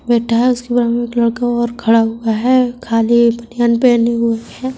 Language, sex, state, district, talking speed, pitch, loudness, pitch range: Hindi, female, Uttar Pradesh, Budaun, 215 wpm, 235 Hz, -14 LUFS, 230-245 Hz